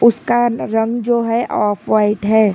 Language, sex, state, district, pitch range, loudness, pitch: Hindi, female, Karnataka, Bangalore, 215-235 Hz, -16 LUFS, 225 Hz